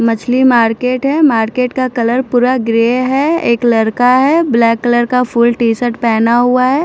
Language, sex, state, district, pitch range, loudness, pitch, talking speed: Hindi, female, Punjab, Fazilka, 230-255 Hz, -12 LUFS, 245 Hz, 175 wpm